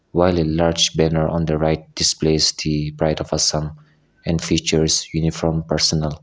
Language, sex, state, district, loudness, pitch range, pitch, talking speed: English, male, Nagaland, Kohima, -19 LUFS, 75-80 Hz, 80 Hz, 155 wpm